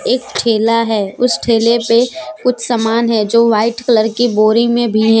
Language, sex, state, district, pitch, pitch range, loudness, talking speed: Hindi, female, Jharkhand, Deoghar, 230 Hz, 225-240 Hz, -13 LUFS, 205 wpm